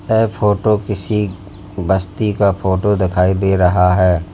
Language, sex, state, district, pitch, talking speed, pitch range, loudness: Hindi, male, Uttar Pradesh, Lalitpur, 95 Hz, 140 wpm, 95-105 Hz, -16 LUFS